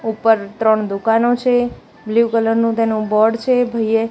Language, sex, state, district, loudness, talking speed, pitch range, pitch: Gujarati, female, Gujarat, Gandhinagar, -16 LUFS, 175 wpm, 220-235 Hz, 225 Hz